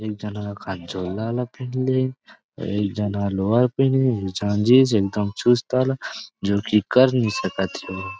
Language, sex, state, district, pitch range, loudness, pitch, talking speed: Chhattisgarhi, male, Chhattisgarh, Rajnandgaon, 100-125 Hz, -22 LUFS, 105 Hz, 210 wpm